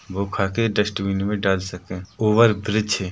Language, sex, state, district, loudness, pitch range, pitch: Hindi, male, Chhattisgarh, Rajnandgaon, -21 LUFS, 95-110 Hz, 100 Hz